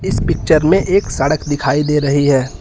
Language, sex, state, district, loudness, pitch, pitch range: Hindi, male, Uttar Pradesh, Lucknow, -14 LUFS, 145 Hz, 140-155 Hz